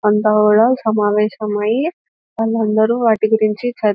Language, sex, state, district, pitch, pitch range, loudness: Telugu, female, Telangana, Nalgonda, 220 Hz, 210-230 Hz, -16 LUFS